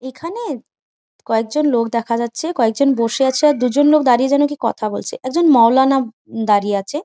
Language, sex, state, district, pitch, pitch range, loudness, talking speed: Bengali, female, West Bengal, Jhargram, 260 Hz, 230-290 Hz, -16 LUFS, 195 wpm